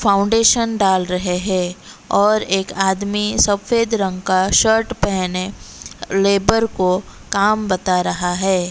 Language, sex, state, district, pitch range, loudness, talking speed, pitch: Hindi, female, Odisha, Malkangiri, 185-210 Hz, -17 LUFS, 125 wpm, 195 Hz